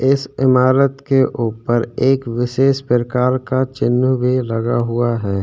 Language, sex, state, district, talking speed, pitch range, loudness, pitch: Hindi, male, Chhattisgarh, Sukma, 145 wpm, 120-130 Hz, -17 LUFS, 125 Hz